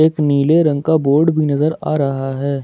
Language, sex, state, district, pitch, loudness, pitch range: Hindi, male, Jharkhand, Ranchi, 150 Hz, -15 LUFS, 140-155 Hz